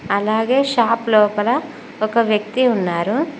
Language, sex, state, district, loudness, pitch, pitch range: Telugu, female, Telangana, Mahabubabad, -17 LUFS, 230 Hz, 210-255 Hz